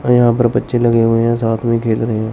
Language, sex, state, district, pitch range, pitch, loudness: Hindi, male, Chandigarh, Chandigarh, 115-120 Hz, 115 Hz, -14 LUFS